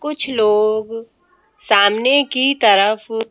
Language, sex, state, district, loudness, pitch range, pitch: Hindi, female, Madhya Pradesh, Bhopal, -15 LUFS, 215-275 Hz, 225 Hz